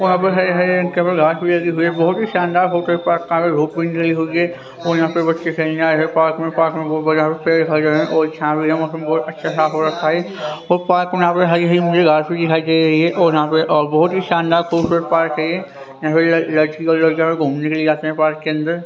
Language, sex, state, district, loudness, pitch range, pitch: Hindi, male, Haryana, Rohtak, -16 LUFS, 155-170 Hz, 165 Hz